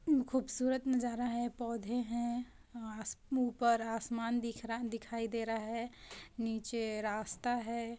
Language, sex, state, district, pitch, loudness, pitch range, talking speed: Hindi, female, Chhattisgarh, Balrampur, 235 Hz, -37 LUFS, 230-245 Hz, 145 wpm